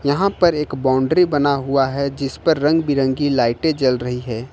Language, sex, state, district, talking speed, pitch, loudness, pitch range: Hindi, male, Jharkhand, Ranchi, 200 wpm, 140 Hz, -18 LUFS, 130-150 Hz